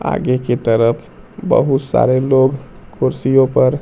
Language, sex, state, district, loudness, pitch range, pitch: Hindi, male, Bihar, Kaimur, -15 LUFS, 125-135 Hz, 130 Hz